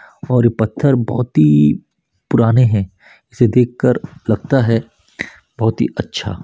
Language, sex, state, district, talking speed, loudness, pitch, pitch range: Hindi, male, Chhattisgarh, Bastar, 130 wpm, -15 LUFS, 115 Hz, 110-125 Hz